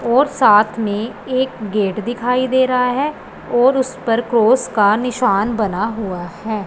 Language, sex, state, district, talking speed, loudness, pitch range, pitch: Hindi, female, Punjab, Pathankot, 160 wpm, -17 LUFS, 210-255 Hz, 230 Hz